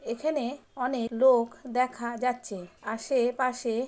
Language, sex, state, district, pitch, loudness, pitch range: Bengali, female, West Bengal, Jalpaiguri, 245 Hz, -28 LUFS, 235-255 Hz